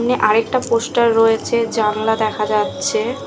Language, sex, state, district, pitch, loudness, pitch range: Bengali, female, Odisha, Khordha, 225 Hz, -17 LUFS, 215-235 Hz